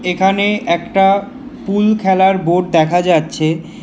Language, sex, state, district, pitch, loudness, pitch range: Bengali, male, West Bengal, Alipurduar, 190 Hz, -14 LUFS, 170-200 Hz